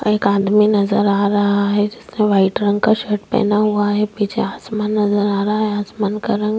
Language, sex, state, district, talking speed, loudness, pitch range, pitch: Hindi, female, Chhattisgarh, Korba, 210 wpm, -17 LUFS, 205-210 Hz, 210 Hz